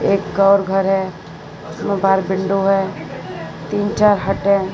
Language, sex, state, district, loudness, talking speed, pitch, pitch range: Hindi, female, Gujarat, Valsad, -17 LUFS, 140 wpm, 195 Hz, 180-200 Hz